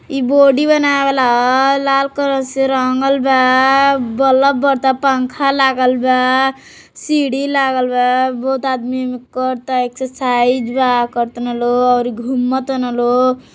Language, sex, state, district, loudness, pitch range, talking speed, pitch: Hindi, female, Uttar Pradesh, Gorakhpur, -14 LUFS, 250-270 Hz, 145 wpm, 260 Hz